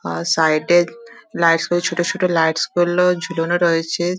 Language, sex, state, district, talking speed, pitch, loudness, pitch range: Bengali, female, West Bengal, Dakshin Dinajpur, 155 wpm, 170 Hz, -17 LUFS, 165-175 Hz